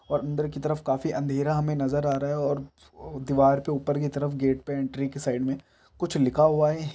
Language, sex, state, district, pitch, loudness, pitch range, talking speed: Hindi, male, Chhattisgarh, Balrampur, 145 Hz, -26 LUFS, 135-150 Hz, 235 wpm